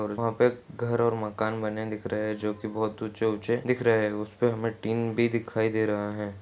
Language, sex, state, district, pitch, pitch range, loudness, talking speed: Hindi, male, Uttarakhand, Uttarkashi, 110 Hz, 105-115 Hz, -28 LUFS, 250 wpm